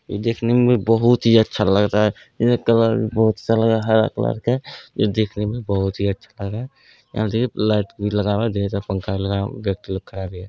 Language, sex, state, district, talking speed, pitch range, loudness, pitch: Hindi, male, Bihar, Gopalganj, 250 wpm, 100-115 Hz, -20 LUFS, 105 Hz